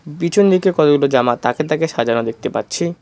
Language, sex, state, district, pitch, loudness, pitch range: Bengali, male, West Bengal, Cooch Behar, 155 Hz, -16 LUFS, 120-170 Hz